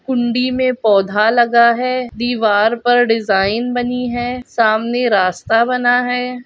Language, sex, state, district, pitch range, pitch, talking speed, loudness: Hindi, female, Goa, North and South Goa, 225-250 Hz, 240 Hz, 130 wpm, -15 LUFS